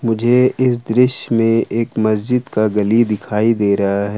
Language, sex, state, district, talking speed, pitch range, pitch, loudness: Hindi, male, Jharkhand, Ranchi, 170 wpm, 105-120 Hz, 115 Hz, -16 LUFS